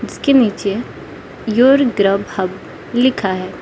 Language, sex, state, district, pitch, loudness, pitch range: Hindi, female, Arunachal Pradesh, Lower Dibang Valley, 210 Hz, -16 LUFS, 195-255 Hz